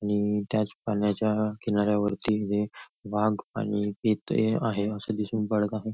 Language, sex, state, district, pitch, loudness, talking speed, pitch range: Marathi, male, Maharashtra, Nagpur, 105 Hz, -28 LUFS, 110 wpm, 105-110 Hz